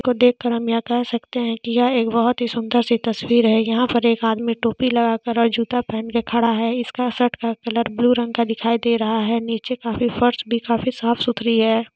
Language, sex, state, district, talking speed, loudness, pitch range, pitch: Hindi, female, Jharkhand, Sahebganj, 245 wpm, -20 LUFS, 230-240 Hz, 235 Hz